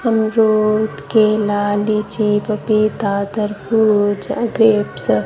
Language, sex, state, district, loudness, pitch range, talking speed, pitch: Hindi, female, Punjab, Kapurthala, -16 LUFS, 205-220 Hz, 90 wpm, 215 Hz